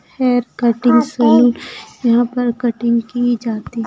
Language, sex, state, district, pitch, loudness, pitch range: Hindi, female, Bihar, Begusarai, 240 Hz, -15 LUFS, 235-245 Hz